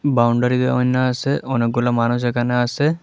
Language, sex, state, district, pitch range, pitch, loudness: Bengali, male, Tripura, West Tripura, 120-130 Hz, 125 Hz, -18 LUFS